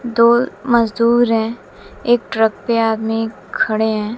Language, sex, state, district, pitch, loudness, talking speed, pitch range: Hindi, female, Haryana, Jhajjar, 230 Hz, -16 LUFS, 130 wpm, 220-235 Hz